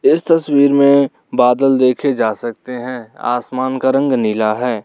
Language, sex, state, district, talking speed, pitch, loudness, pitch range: Hindi, male, Arunachal Pradesh, Lower Dibang Valley, 160 wpm, 130 Hz, -15 LUFS, 120-140 Hz